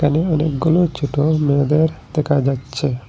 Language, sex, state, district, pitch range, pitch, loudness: Bengali, male, Assam, Hailakandi, 140-155 Hz, 145 Hz, -18 LUFS